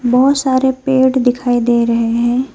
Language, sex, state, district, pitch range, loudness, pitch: Hindi, female, West Bengal, Alipurduar, 240-260 Hz, -14 LUFS, 250 Hz